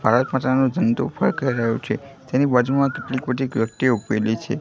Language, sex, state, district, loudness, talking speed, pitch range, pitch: Gujarati, male, Gujarat, Gandhinagar, -21 LUFS, 170 wpm, 120-135 Hz, 130 Hz